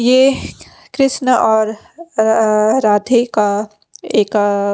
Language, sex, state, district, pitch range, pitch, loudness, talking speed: Hindi, female, Punjab, Pathankot, 210-255 Hz, 220 Hz, -14 LUFS, 115 wpm